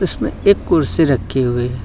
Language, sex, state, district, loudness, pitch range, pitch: Hindi, male, Uttar Pradesh, Lucknow, -16 LUFS, 120-165 Hz, 130 Hz